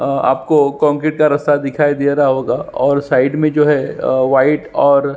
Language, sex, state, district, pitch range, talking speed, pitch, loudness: Hindi, male, Chhattisgarh, Sukma, 140-150 Hz, 195 wpm, 145 Hz, -14 LUFS